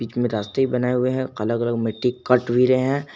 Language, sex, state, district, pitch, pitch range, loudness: Hindi, male, Jharkhand, Garhwa, 125 Hz, 115-130 Hz, -21 LUFS